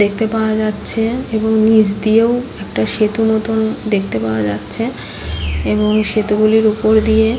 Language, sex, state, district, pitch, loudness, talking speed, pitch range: Bengali, female, West Bengal, Paschim Medinipur, 215 Hz, -15 LUFS, 130 wpm, 205-220 Hz